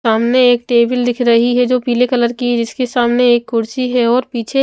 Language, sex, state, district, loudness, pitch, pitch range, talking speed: Hindi, female, Maharashtra, Mumbai Suburban, -14 LUFS, 245 Hz, 235-250 Hz, 220 wpm